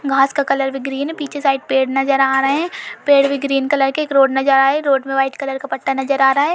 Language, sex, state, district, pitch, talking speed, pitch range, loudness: Hindi, female, Uttar Pradesh, Budaun, 275 Hz, 310 wpm, 270-280 Hz, -16 LUFS